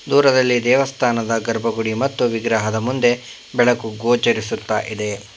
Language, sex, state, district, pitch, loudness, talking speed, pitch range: Kannada, male, Karnataka, Bangalore, 115 Hz, -19 LUFS, 100 wpm, 110-125 Hz